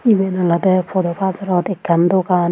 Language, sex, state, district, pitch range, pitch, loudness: Chakma, female, Tripura, Unakoti, 175-190 Hz, 185 Hz, -17 LUFS